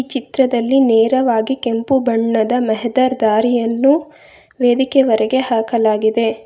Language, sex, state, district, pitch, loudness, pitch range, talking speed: Kannada, female, Karnataka, Bangalore, 240 Hz, -15 LUFS, 225-260 Hz, 85 wpm